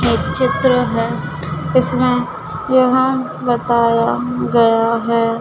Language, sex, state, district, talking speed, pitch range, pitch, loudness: Hindi, female, Madhya Pradesh, Dhar, 90 wpm, 230-255 Hz, 235 Hz, -16 LUFS